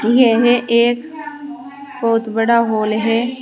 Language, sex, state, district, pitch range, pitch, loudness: Hindi, female, Uttar Pradesh, Saharanpur, 225-260 Hz, 240 Hz, -15 LUFS